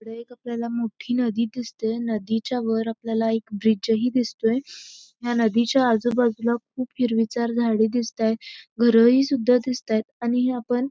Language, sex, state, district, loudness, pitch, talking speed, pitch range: Marathi, female, Karnataka, Belgaum, -23 LUFS, 235 Hz, 130 wpm, 225-245 Hz